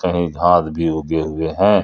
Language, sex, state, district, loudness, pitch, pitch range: Hindi, male, Jharkhand, Ranchi, -18 LUFS, 80 Hz, 80-85 Hz